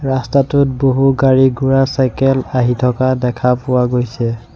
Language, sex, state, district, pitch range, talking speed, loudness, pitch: Assamese, male, Assam, Sonitpur, 125-135 Hz, 130 wpm, -14 LUFS, 130 Hz